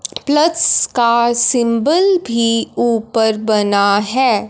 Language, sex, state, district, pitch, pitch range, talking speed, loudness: Hindi, female, Punjab, Fazilka, 235 Hz, 225-265 Hz, 95 wpm, -14 LUFS